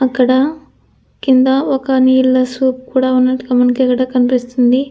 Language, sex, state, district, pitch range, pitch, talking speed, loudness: Telugu, female, Andhra Pradesh, Anantapur, 255-260 Hz, 255 Hz, 100 wpm, -13 LUFS